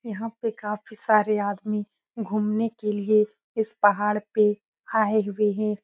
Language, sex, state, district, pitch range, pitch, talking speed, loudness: Hindi, female, Bihar, Saran, 210-220 Hz, 210 Hz, 145 wpm, -25 LUFS